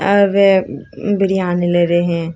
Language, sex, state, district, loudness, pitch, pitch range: Hindi, female, Uttar Pradesh, Shamli, -15 LUFS, 185 Hz, 175-200 Hz